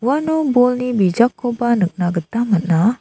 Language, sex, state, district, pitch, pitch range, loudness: Garo, female, Meghalaya, South Garo Hills, 235 Hz, 190-250 Hz, -17 LUFS